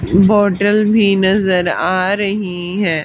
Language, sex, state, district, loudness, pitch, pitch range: Hindi, female, Haryana, Charkhi Dadri, -14 LUFS, 195 Hz, 185-205 Hz